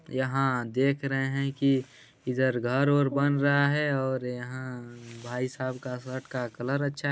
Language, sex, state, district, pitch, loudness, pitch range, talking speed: Hindi, male, Chhattisgarh, Bilaspur, 130 Hz, -28 LUFS, 125-140 Hz, 175 wpm